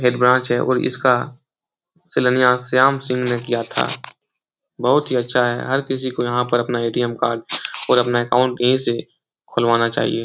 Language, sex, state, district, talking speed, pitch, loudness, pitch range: Hindi, male, Uttar Pradesh, Etah, 175 wpm, 125 Hz, -18 LUFS, 120-130 Hz